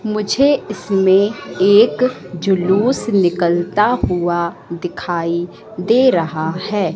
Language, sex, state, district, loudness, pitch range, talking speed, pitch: Hindi, female, Madhya Pradesh, Katni, -16 LUFS, 175-210 Hz, 85 wpm, 190 Hz